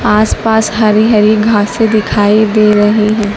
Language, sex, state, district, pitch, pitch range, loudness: Hindi, female, Madhya Pradesh, Dhar, 215 Hz, 210-220 Hz, -10 LUFS